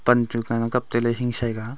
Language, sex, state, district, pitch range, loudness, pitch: Wancho, male, Arunachal Pradesh, Longding, 115-125 Hz, -22 LUFS, 120 Hz